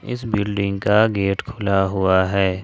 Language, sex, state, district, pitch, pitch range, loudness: Hindi, male, Jharkhand, Ranchi, 100 Hz, 95-105 Hz, -19 LUFS